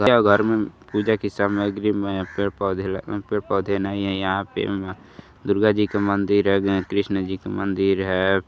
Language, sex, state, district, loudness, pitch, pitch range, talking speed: Hindi, male, Uttar Pradesh, Gorakhpur, -22 LUFS, 100 Hz, 95-100 Hz, 185 wpm